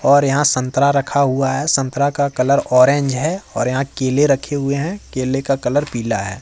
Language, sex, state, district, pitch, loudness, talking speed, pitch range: Hindi, male, Jharkhand, Ranchi, 140 Hz, -17 LUFS, 205 wpm, 130-140 Hz